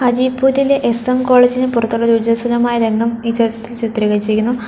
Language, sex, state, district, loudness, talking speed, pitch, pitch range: Malayalam, female, Kerala, Kollam, -14 LUFS, 115 wpm, 235 Hz, 230-250 Hz